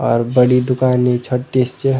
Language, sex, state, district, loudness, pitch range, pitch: Garhwali, male, Uttarakhand, Tehri Garhwal, -15 LUFS, 125-130 Hz, 125 Hz